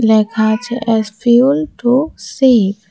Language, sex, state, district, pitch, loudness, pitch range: Bengali, female, Tripura, West Tripura, 235 Hz, -14 LUFS, 220-255 Hz